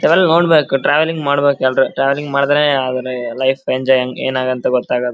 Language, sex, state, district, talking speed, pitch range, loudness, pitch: Kannada, male, Karnataka, Bellary, 150 wpm, 130-145 Hz, -15 LUFS, 135 Hz